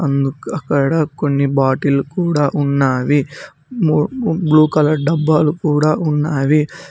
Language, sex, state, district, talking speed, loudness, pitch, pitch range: Telugu, male, Telangana, Mahabubabad, 105 wpm, -16 LUFS, 150 Hz, 140-155 Hz